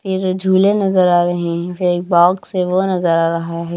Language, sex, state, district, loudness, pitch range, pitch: Hindi, female, Punjab, Kapurthala, -15 LUFS, 175-190 Hz, 180 Hz